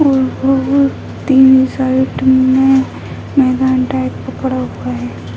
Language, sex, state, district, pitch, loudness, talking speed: Hindi, female, Bihar, Jamui, 260 Hz, -13 LUFS, 65 wpm